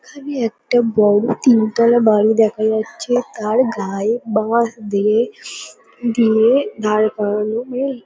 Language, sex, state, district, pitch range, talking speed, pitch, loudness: Bengali, female, West Bengal, Kolkata, 215-240 Hz, 110 wpm, 225 Hz, -17 LUFS